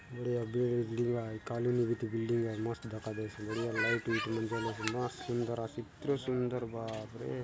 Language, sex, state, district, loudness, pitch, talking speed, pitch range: Halbi, male, Chhattisgarh, Bastar, -35 LUFS, 115 Hz, 185 wpm, 115-120 Hz